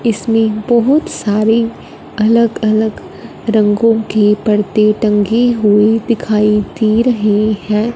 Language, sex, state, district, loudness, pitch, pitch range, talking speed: Hindi, female, Punjab, Fazilka, -13 LUFS, 215 Hz, 210-230 Hz, 105 wpm